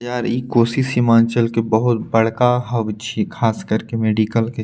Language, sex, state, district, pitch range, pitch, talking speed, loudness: Maithili, male, Bihar, Purnia, 110-120 Hz, 115 Hz, 170 wpm, -18 LUFS